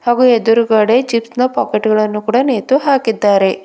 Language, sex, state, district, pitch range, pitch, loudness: Kannada, female, Karnataka, Bidar, 215-255 Hz, 230 Hz, -13 LUFS